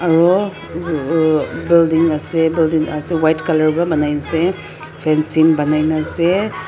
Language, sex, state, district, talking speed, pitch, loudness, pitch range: Nagamese, female, Nagaland, Dimapur, 145 wpm, 160 Hz, -16 LUFS, 155-170 Hz